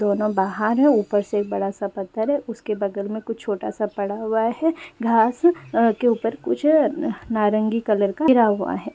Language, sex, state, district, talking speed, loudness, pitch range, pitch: Hindi, female, Uttar Pradesh, Gorakhpur, 200 wpm, -21 LUFS, 205-240 Hz, 220 Hz